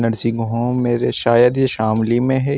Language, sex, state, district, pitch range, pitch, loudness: Hindi, male, Uttar Pradesh, Shamli, 115-125 Hz, 120 Hz, -17 LUFS